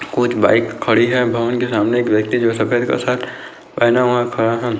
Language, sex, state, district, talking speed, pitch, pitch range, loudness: Hindi, male, Bihar, Bhagalpur, 175 wpm, 120 Hz, 115-120 Hz, -16 LUFS